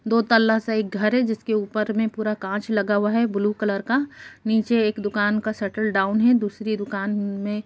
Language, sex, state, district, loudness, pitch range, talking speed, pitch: Hindi, male, Bihar, Gopalganj, -22 LUFS, 205-225 Hz, 220 wpm, 215 Hz